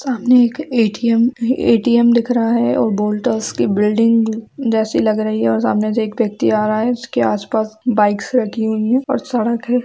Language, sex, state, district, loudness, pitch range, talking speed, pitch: Hindi, female, Bihar, East Champaran, -16 LUFS, 215-240 Hz, 195 wpm, 230 Hz